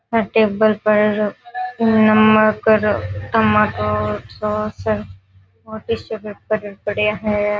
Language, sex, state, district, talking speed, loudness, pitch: Rajasthani, female, Rajasthan, Nagaur, 95 wpm, -17 LUFS, 210 Hz